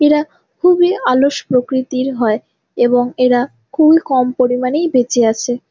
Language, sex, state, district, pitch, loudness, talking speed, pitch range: Bengali, female, West Bengal, Jalpaiguri, 255 Hz, -14 LUFS, 145 wpm, 245-295 Hz